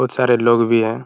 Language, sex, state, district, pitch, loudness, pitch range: Hindi, male, Uttar Pradesh, Hamirpur, 120 Hz, -15 LUFS, 115-125 Hz